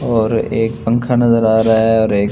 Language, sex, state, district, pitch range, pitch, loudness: Hindi, male, Delhi, New Delhi, 110-115 Hz, 115 Hz, -14 LUFS